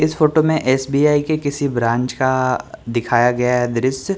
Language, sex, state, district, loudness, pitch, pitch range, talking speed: Hindi, male, Bihar, Patna, -17 LUFS, 130 Hz, 125-150 Hz, 170 wpm